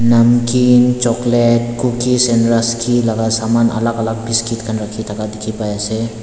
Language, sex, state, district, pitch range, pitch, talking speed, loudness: Nagamese, male, Nagaland, Dimapur, 110-120 Hz, 115 Hz, 155 wpm, -15 LUFS